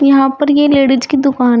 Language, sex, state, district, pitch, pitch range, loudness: Hindi, female, Uttar Pradesh, Shamli, 275 Hz, 265-285 Hz, -11 LUFS